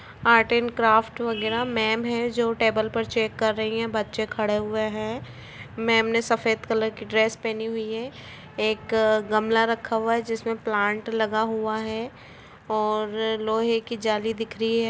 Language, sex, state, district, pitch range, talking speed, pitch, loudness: Hindi, female, Bihar, Gopalganj, 220-230 Hz, 180 wpm, 225 Hz, -24 LUFS